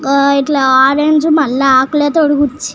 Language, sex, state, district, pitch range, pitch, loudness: Telugu, female, Telangana, Nalgonda, 270-300 Hz, 285 Hz, -11 LUFS